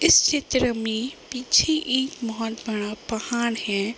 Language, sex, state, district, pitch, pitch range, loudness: Hindi, female, Uttar Pradesh, Deoria, 235 Hz, 225-260 Hz, -23 LUFS